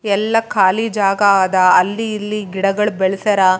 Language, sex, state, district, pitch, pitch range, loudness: Kannada, female, Karnataka, Raichur, 200 Hz, 190-210 Hz, -15 LUFS